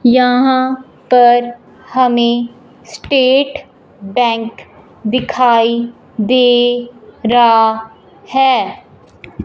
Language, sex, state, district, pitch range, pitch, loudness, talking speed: Hindi, male, Punjab, Fazilka, 235-255 Hz, 245 Hz, -13 LUFS, 55 wpm